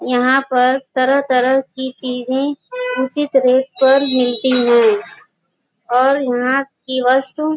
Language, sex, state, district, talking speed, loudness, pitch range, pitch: Hindi, female, Uttar Pradesh, Gorakhpur, 120 wpm, -16 LUFS, 255-275 Hz, 260 Hz